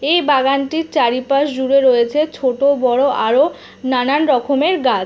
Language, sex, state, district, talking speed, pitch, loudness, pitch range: Bengali, female, West Bengal, Jhargram, 130 wpm, 275 Hz, -15 LUFS, 260-295 Hz